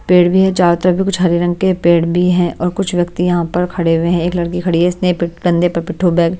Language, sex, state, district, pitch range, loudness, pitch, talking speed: Hindi, male, Delhi, New Delhi, 170-180 Hz, -14 LUFS, 175 Hz, 290 wpm